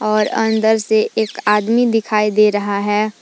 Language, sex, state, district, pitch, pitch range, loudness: Hindi, female, Jharkhand, Palamu, 215 Hz, 210-220 Hz, -16 LUFS